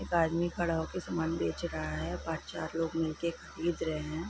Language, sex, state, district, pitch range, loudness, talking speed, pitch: Hindi, female, Bihar, Sitamarhi, 160-170 Hz, -34 LUFS, 235 wpm, 165 Hz